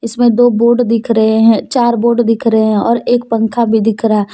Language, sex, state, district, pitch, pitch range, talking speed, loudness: Hindi, female, Jharkhand, Deoghar, 230 Hz, 220-240 Hz, 235 wpm, -12 LUFS